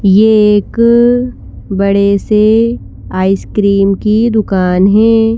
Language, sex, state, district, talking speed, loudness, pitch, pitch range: Hindi, female, Madhya Pradesh, Bhopal, 90 wpm, -10 LUFS, 210 Hz, 200-225 Hz